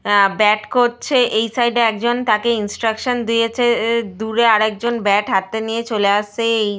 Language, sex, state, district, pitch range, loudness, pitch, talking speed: Bengali, female, Jharkhand, Sahebganj, 210-235 Hz, -17 LUFS, 225 Hz, 175 wpm